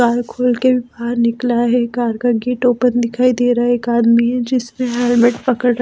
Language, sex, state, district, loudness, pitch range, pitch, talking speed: Hindi, female, Himachal Pradesh, Shimla, -16 LUFS, 235-250 Hz, 245 Hz, 195 wpm